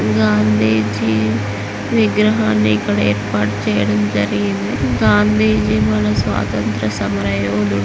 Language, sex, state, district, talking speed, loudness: Telugu, female, Andhra Pradesh, Srikakulam, 85 wpm, -16 LUFS